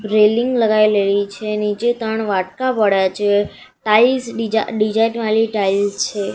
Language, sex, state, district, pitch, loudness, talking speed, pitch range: Gujarati, female, Gujarat, Gandhinagar, 215 Hz, -17 LUFS, 130 wpm, 205-225 Hz